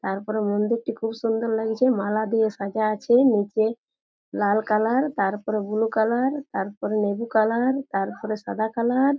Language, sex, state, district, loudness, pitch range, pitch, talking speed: Bengali, female, West Bengal, Jhargram, -23 LUFS, 210-235 Hz, 220 Hz, 150 wpm